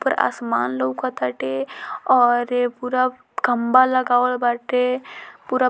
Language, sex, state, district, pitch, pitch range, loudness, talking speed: Bhojpuri, female, Bihar, Muzaffarpur, 245 Hz, 235-255 Hz, -20 LUFS, 115 wpm